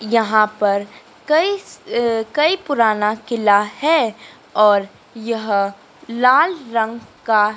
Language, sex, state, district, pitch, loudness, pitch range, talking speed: Hindi, female, Madhya Pradesh, Dhar, 225 Hz, -17 LUFS, 210-245 Hz, 110 wpm